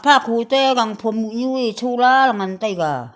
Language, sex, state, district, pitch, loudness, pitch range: Wancho, female, Arunachal Pradesh, Longding, 230 Hz, -18 LUFS, 215-260 Hz